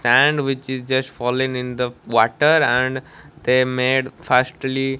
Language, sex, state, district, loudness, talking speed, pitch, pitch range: English, male, Odisha, Malkangiri, -19 LUFS, 145 wpm, 130 Hz, 125-135 Hz